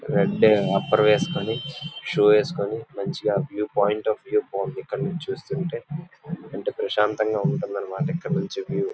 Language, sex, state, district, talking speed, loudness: Telugu, male, Andhra Pradesh, Visakhapatnam, 155 wpm, -24 LUFS